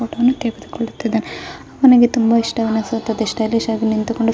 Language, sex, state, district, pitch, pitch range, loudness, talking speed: Kannada, female, Karnataka, Raichur, 230 Hz, 225-235 Hz, -17 LUFS, 85 wpm